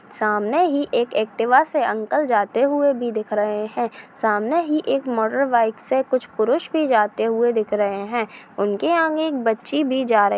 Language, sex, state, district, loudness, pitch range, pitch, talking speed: Hindi, female, Chhattisgarh, Raigarh, -20 LUFS, 215-285 Hz, 235 Hz, 185 wpm